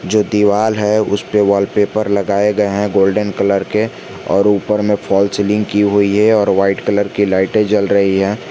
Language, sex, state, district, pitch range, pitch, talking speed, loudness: Hindi, male, Jharkhand, Garhwa, 100-105 Hz, 100 Hz, 195 wpm, -14 LUFS